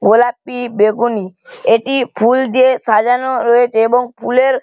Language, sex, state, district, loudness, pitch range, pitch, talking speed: Bengali, male, West Bengal, Malda, -14 LUFS, 230-255 Hz, 245 Hz, 115 wpm